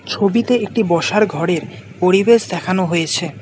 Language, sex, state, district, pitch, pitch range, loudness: Bengali, male, West Bengal, Alipurduar, 185 Hz, 170-215 Hz, -16 LUFS